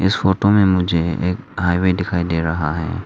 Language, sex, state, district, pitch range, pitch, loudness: Hindi, male, Arunachal Pradesh, Longding, 85-95 Hz, 90 Hz, -18 LUFS